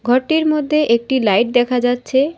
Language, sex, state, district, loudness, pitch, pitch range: Bengali, female, West Bengal, Alipurduar, -16 LUFS, 255 Hz, 245-300 Hz